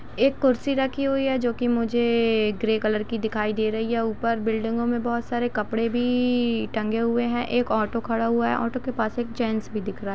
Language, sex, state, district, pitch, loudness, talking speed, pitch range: Hindi, female, Jharkhand, Jamtara, 230 Hz, -24 LUFS, 220 wpm, 220-240 Hz